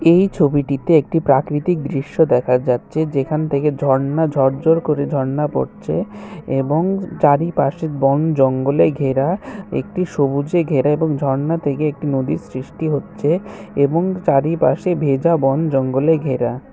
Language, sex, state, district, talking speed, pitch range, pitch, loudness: Bengali, male, Tripura, West Tripura, 130 wpm, 135-165 Hz, 150 Hz, -18 LUFS